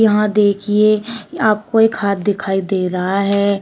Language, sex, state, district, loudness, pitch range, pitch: Hindi, female, Uttar Pradesh, Shamli, -16 LUFS, 195-215 Hz, 205 Hz